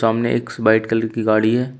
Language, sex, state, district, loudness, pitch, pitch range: Hindi, male, Uttar Pradesh, Shamli, -18 LUFS, 115 Hz, 110-115 Hz